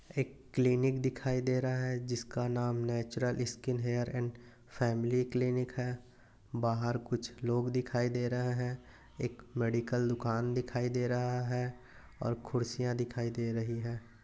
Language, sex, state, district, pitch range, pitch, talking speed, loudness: Hindi, male, Maharashtra, Nagpur, 120-125 Hz, 120 Hz, 150 wpm, -34 LUFS